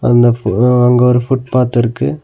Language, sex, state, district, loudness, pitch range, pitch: Tamil, male, Tamil Nadu, Nilgiris, -12 LUFS, 115-125 Hz, 120 Hz